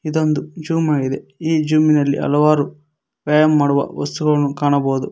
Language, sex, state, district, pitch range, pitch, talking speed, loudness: Kannada, male, Karnataka, Koppal, 140-155 Hz, 150 Hz, 115 wpm, -17 LUFS